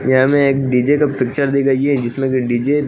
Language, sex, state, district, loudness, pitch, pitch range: Hindi, male, Bihar, Katihar, -15 LUFS, 135 Hz, 130-140 Hz